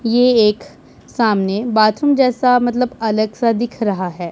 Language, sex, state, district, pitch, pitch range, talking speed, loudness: Hindi, male, Punjab, Pathankot, 230 Hz, 210-245 Hz, 155 wpm, -16 LUFS